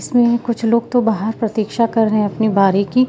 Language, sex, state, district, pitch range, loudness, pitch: Hindi, female, Madhya Pradesh, Katni, 215-235 Hz, -16 LUFS, 225 Hz